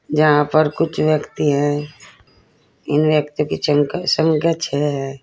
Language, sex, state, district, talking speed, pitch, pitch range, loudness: Hindi, female, Uttar Pradesh, Saharanpur, 140 wpm, 150 Hz, 145-155 Hz, -18 LUFS